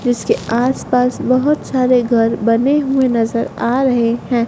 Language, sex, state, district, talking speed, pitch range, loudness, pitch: Hindi, female, Madhya Pradesh, Dhar, 160 wpm, 230-260 Hz, -15 LUFS, 250 Hz